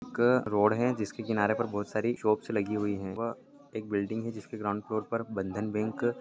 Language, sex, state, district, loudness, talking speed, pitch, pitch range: Hindi, male, Chhattisgarh, Bilaspur, -31 LUFS, 220 wpm, 110 Hz, 105-115 Hz